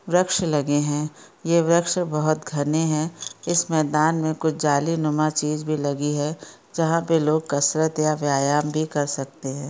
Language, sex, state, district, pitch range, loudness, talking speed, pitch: Hindi, female, Chhattisgarh, Bastar, 145-160 Hz, -22 LUFS, 175 wpm, 155 Hz